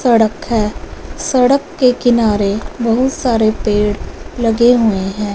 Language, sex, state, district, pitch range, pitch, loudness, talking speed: Hindi, female, Punjab, Fazilka, 210-245 Hz, 230 Hz, -14 LUFS, 125 wpm